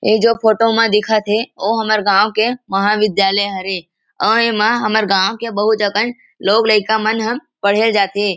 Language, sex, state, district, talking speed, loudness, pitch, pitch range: Chhattisgarhi, male, Chhattisgarh, Rajnandgaon, 195 wpm, -15 LUFS, 215 Hz, 200-225 Hz